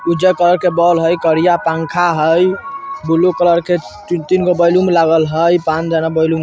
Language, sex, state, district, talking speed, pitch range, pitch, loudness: Bajjika, male, Bihar, Vaishali, 185 wpm, 165-180 Hz, 170 Hz, -13 LUFS